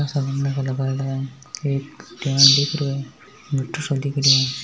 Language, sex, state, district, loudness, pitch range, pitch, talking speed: Hindi, female, Rajasthan, Nagaur, -20 LUFS, 135-140 Hz, 140 Hz, 105 wpm